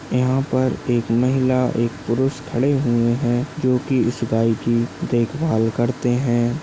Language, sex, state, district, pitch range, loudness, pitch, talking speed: Hindi, male, Maharashtra, Aurangabad, 120-130 Hz, -20 LUFS, 120 Hz, 145 wpm